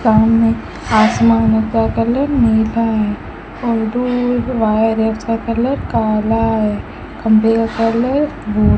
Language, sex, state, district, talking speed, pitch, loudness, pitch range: Hindi, female, Rajasthan, Bikaner, 135 wpm, 225 Hz, -15 LUFS, 220-230 Hz